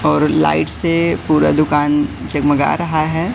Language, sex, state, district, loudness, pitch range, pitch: Hindi, male, Madhya Pradesh, Katni, -15 LUFS, 145-160 Hz, 150 Hz